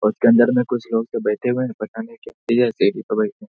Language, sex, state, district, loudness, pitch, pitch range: Hindi, male, Bihar, Saharsa, -19 LUFS, 120 Hz, 115-125 Hz